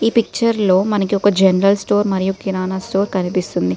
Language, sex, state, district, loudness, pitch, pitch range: Telugu, female, Telangana, Karimnagar, -16 LUFS, 195 Hz, 185-205 Hz